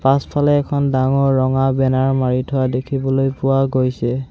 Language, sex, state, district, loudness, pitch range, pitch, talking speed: Assamese, male, Assam, Sonitpur, -17 LUFS, 130-135 Hz, 135 Hz, 140 wpm